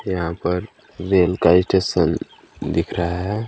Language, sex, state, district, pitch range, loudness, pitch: Hindi, male, Chhattisgarh, Balrampur, 85-95 Hz, -20 LUFS, 90 Hz